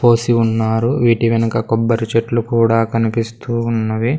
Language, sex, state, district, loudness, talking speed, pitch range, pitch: Telugu, male, Andhra Pradesh, Sri Satya Sai, -16 LUFS, 130 wpm, 115-120 Hz, 115 Hz